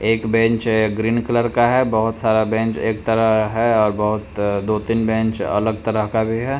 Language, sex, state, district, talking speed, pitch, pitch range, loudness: Hindi, male, Bihar, Patna, 190 wpm, 110 Hz, 110-115 Hz, -18 LUFS